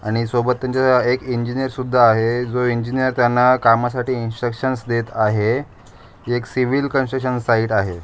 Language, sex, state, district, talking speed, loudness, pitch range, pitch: Marathi, male, Maharashtra, Aurangabad, 140 wpm, -18 LUFS, 115-130 Hz, 120 Hz